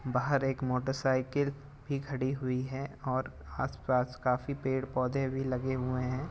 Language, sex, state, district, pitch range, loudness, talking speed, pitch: Hindi, male, Uttar Pradesh, Jalaun, 130-135 Hz, -33 LUFS, 160 wpm, 130 Hz